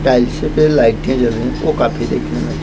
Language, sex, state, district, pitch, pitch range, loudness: Hindi, male, Maharashtra, Mumbai Suburban, 120 Hz, 80-130 Hz, -15 LUFS